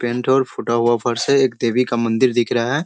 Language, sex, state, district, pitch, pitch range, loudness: Hindi, male, Bihar, Sitamarhi, 120 Hz, 120-130 Hz, -18 LUFS